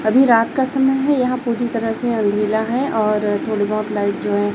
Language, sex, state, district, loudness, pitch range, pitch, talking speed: Hindi, female, Chhattisgarh, Raipur, -18 LUFS, 210-255 Hz, 225 Hz, 225 wpm